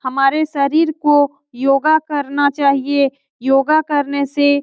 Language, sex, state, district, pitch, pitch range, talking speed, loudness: Hindi, female, Bihar, Lakhisarai, 285 Hz, 275-295 Hz, 130 wpm, -16 LUFS